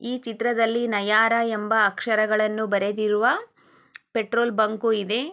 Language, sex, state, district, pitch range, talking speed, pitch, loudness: Kannada, female, Karnataka, Chamarajanagar, 215-235 Hz, 100 wpm, 225 Hz, -22 LUFS